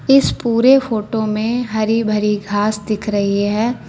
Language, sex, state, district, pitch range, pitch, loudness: Hindi, female, Uttar Pradesh, Lucknow, 210-235 Hz, 215 Hz, -17 LUFS